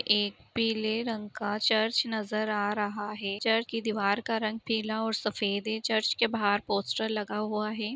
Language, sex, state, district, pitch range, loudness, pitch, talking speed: Hindi, female, Uttar Pradesh, Etah, 210-225 Hz, -29 LUFS, 215 Hz, 190 wpm